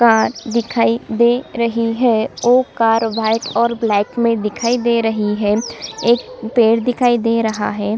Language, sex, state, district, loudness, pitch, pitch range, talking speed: Hindi, female, Chhattisgarh, Sukma, -16 LUFS, 230 Hz, 220-235 Hz, 165 wpm